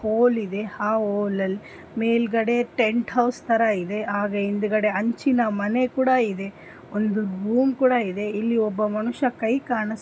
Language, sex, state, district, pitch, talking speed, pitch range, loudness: Kannada, female, Karnataka, Dharwad, 220 Hz, 145 wpm, 210-240 Hz, -23 LUFS